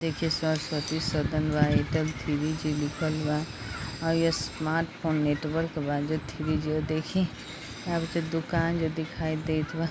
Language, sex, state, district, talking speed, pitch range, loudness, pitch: Bhojpuri, female, Bihar, Gopalganj, 155 wpm, 150-165 Hz, -29 LUFS, 155 Hz